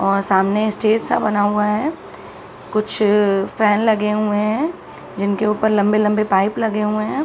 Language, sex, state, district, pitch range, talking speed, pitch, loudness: Hindi, female, Bihar, Araria, 205-215 Hz, 175 wpm, 210 Hz, -18 LUFS